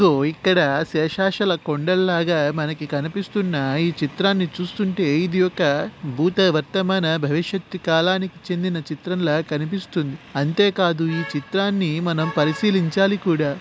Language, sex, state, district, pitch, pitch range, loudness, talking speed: Telugu, male, Andhra Pradesh, Guntur, 170 Hz, 155-190 Hz, -21 LUFS, 110 wpm